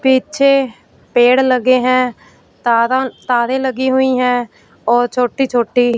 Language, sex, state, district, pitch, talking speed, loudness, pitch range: Hindi, female, Punjab, Fazilka, 250 Hz, 120 wpm, -14 LUFS, 240-260 Hz